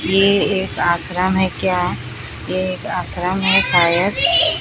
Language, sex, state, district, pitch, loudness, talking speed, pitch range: Hindi, female, Odisha, Sambalpur, 180 Hz, -17 LUFS, 130 wpm, 120-190 Hz